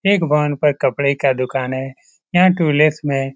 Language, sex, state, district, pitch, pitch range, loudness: Hindi, male, Bihar, Lakhisarai, 145 Hz, 135-155 Hz, -17 LUFS